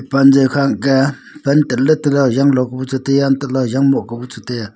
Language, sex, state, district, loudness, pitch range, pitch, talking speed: Wancho, male, Arunachal Pradesh, Longding, -15 LUFS, 130-140 Hz, 135 Hz, 275 wpm